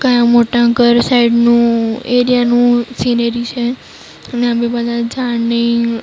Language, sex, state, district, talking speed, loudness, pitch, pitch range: Gujarati, female, Maharashtra, Mumbai Suburban, 130 wpm, -13 LUFS, 240 Hz, 235-245 Hz